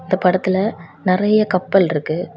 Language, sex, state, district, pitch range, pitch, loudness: Tamil, female, Tamil Nadu, Kanyakumari, 180-195 Hz, 185 Hz, -17 LUFS